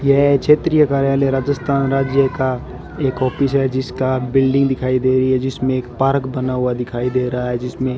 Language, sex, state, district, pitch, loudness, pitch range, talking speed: Hindi, male, Rajasthan, Bikaner, 130 Hz, -17 LUFS, 130-140 Hz, 190 wpm